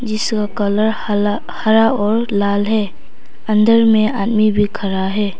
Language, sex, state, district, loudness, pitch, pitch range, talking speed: Hindi, female, Arunachal Pradesh, Papum Pare, -16 LUFS, 215 Hz, 205-220 Hz, 145 wpm